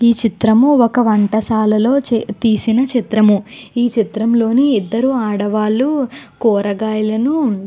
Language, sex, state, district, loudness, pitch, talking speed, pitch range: Telugu, female, Andhra Pradesh, Guntur, -15 LUFS, 225 Hz, 95 wpm, 215-245 Hz